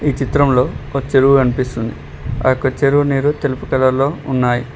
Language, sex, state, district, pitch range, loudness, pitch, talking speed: Telugu, male, Telangana, Hyderabad, 130-140 Hz, -16 LUFS, 135 Hz, 150 wpm